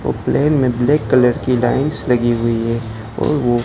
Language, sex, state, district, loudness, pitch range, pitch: Hindi, male, Gujarat, Gandhinagar, -16 LUFS, 115-135 Hz, 125 Hz